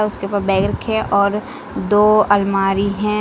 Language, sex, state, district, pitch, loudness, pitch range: Hindi, female, Uttar Pradesh, Lucknow, 205 Hz, -17 LUFS, 200-210 Hz